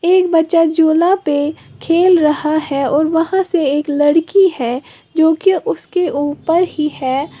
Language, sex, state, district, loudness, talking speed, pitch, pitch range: Hindi, female, Uttar Pradesh, Lalitpur, -14 LUFS, 155 wpm, 320 Hz, 290-355 Hz